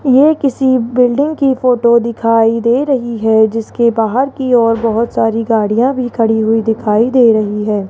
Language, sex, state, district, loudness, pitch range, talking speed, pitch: Hindi, male, Rajasthan, Jaipur, -12 LUFS, 225-255 Hz, 175 wpm, 235 Hz